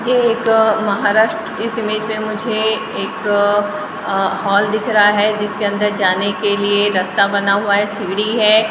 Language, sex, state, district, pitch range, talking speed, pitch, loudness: Hindi, female, Maharashtra, Gondia, 205-220 Hz, 170 wpm, 210 Hz, -16 LUFS